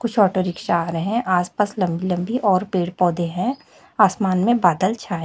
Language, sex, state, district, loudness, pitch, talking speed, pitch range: Hindi, female, Chhattisgarh, Raipur, -20 LUFS, 185 Hz, 205 wpm, 175-210 Hz